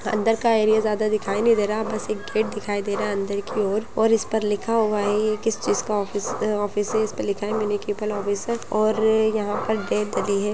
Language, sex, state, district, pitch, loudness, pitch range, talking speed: Hindi, female, Bihar, Muzaffarpur, 215 Hz, -23 LUFS, 205-220 Hz, 245 wpm